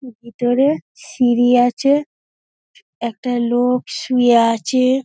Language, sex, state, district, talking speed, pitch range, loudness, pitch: Bengali, female, West Bengal, Dakshin Dinajpur, 85 wpm, 240-260 Hz, -17 LUFS, 245 Hz